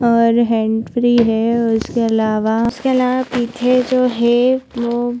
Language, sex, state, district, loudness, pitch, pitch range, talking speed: Hindi, female, Chhattisgarh, Bilaspur, -16 LUFS, 235 Hz, 230-250 Hz, 140 wpm